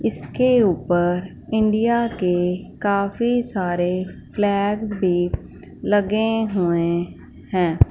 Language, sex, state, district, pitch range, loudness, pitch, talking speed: Hindi, female, Punjab, Fazilka, 175-220 Hz, -21 LUFS, 200 Hz, 85 wpm